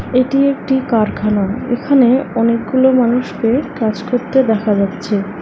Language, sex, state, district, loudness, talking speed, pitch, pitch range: Bengali, female, West Bengal, Alipurduar, -15 LUFS, 110 wpm, 240 Hz, 215-260 Hz